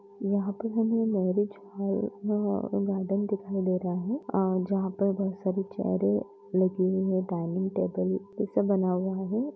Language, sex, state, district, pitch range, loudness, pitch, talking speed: Hindi, female, Bihar, Bhagalpur, 185-200 Hz, -29 LUFS, 195 Hz, 165 wpm